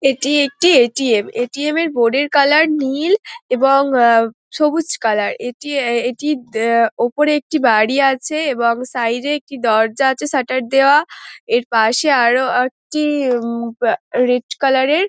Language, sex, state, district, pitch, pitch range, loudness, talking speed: Bengali, female, West Bengal, Dakshin Dinajpur, 265 Hz, 235-295 Hz, -16 LUFS, 150 wpm